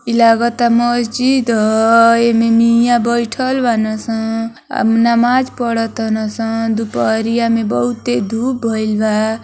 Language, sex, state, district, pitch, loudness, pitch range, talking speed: Bhojpuri, female, Uttar Pradesh, Deoria, 230 Hz, -14 LUFS, 225-235 Hz, 115 wpm